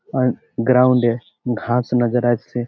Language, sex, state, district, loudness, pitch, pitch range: Bengali, male, West Bengal, Malda, -18 LUFS, 120 Hz, 120-125 Hz